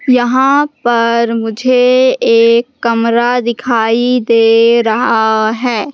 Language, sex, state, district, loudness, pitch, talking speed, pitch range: Hindi, female, Madhya Pradesh, Katni, -11 LUFS, 235 Hz, 90 wpm, 230-250 Hz